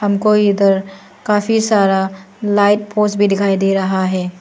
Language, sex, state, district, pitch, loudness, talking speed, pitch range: Hindi, female, Arunachal Pradesh, Lower Dibang Valley, 200 Hz, -15 LUFS, 150 wpm, 195-210 Hz